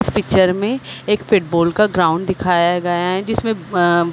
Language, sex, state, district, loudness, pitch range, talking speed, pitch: Hindi, female, Chhattisgarh, Bilaspur, -17 LUFS, 175-210 Hz, 175 wpm, 180 Hz